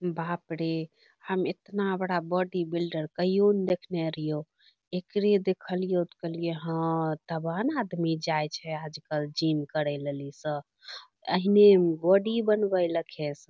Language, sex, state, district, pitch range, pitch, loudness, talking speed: Angika, female, Bihar, Bhagalpur, 155-185 Hz, 170 Hz, -28 LUFS, 145 wpm